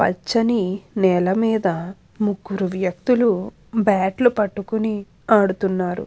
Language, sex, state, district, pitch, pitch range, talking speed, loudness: Telugu, female, Andhra Pradesh, Anantapur, 200 Hz, 185-220 Hz, 80 wpm, -20 LUFS